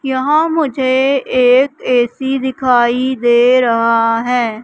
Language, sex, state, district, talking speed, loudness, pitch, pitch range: Hindi, female, Madhya Pradesh, Katni, 105 wpm, -13 LUFS, 255 Hz, 240-265 Hz